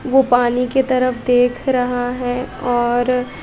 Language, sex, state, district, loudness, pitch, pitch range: Hindi, female, Bihar, West Champaran, -17 LUFS, 250 Hz, 245-255 Hz